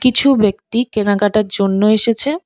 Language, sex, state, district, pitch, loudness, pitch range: Bengali, female, West Bengal, Alipurduar, 215 Hz, -14 LUFS, 205-250 Hz